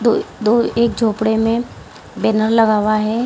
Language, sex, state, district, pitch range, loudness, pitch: Hindi, female, Bihar, Samastipur, 215-230 Hz, -16 LUFS, 225 Hz